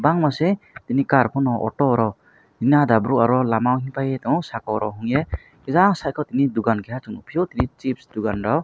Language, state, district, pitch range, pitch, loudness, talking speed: Kokborok, Tripura, West Tripura, 115-145 Hz, 130 Hz, -21 LUFS, 180 wpm